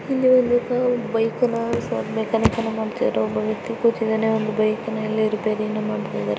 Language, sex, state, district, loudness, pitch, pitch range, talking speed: Kannada, female, Karnataka, Chamarajanagar, -22 LUFS, 220 Hz, 215-230 Hz, 150 wpm